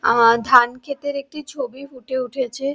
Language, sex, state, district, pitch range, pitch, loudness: Bengali, female, West Bengal, Dakshin Dinajpur, 245-280 Hz, 260 Hz, -19 LUFS